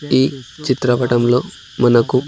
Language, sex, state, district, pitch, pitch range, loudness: Telugu, male, Andhra Pradesh, Sri Satya Sai, 125 Hz, 120-130 Hz, -16 LUFS